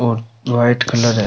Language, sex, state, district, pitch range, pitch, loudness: Rajasthani, male, Rajasthan, Nagaur, 115-120 Hz, 120 Hz, -16 LUFS